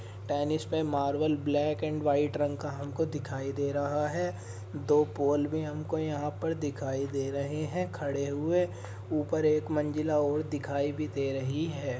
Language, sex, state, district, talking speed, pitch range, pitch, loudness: Hindi, male, Uttar Pradesh, Muzaffarnagar, 170 wpm, 140-150 Hz, 145 Hz, -31 LUFS